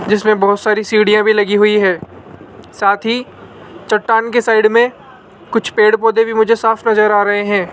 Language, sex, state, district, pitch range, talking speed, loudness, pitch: Hindi, male, Rajasthan, Jaipur, 205-225 Hz, 185 wpm, -13 LUFS, 215 Hz